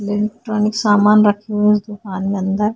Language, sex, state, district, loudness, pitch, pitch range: Hindi, female, Bihar, Vaishali, -16 LUFS, 210 Hz, 205-210 Hz